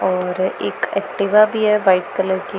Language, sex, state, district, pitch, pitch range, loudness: Hindi, female, Punjab, Pathankot, 190 Hz, 185-210 Hz, -18 LUFS